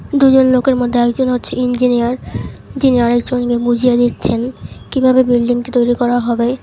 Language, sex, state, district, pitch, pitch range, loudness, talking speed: Bengali, female, West Bengal, Cooch Behar, 245 Hz, 240-255 Hz, -14 LUFS, 135 wpm